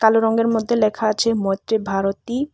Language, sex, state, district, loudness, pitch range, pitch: Bengali, female, Tripura, West Tripura, -20 LUFS, 210-230 Hz, 220 Hz